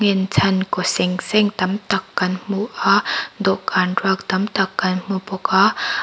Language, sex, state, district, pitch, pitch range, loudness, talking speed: Mizo, female, Mizoram, Aizawl, 195 Hz, 185-205 Hz, -19 LUFS, 170 wpm